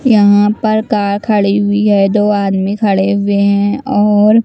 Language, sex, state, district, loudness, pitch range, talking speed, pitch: Hindi, female, Chandigarh, Chandigarh, -12 LUFS, 200-210 Hz, 160 wpm, 205 Hz